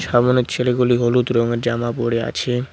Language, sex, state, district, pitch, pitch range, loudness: Bengali, male, West Bengal, Cooch Behar, 120 Hz, 120-125 Hz, -18 LUFS